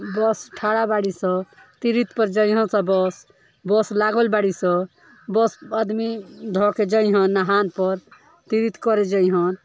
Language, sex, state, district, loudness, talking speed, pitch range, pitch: Bhojpuri, female, Uttar Pradesh, Ghazipur, -21 LUFS, 145 wpm, 190-220 Hz, 210 Hz